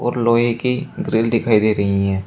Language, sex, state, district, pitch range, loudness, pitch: Hindi, male, Uttar Pradesh, Shamli, 105-120 Hz, -18 LUFS, 115 Hz